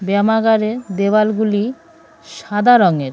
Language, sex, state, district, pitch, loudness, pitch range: Bengali, female, West Bengal, Cooch Behar, 215 Hz, -15 LUFS, 205-240 Hz